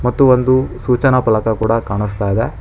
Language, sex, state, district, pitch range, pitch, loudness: Kannada, male, Karnataka, Bangalore, 110-130 Hz, 115 Hz, -15 LUFS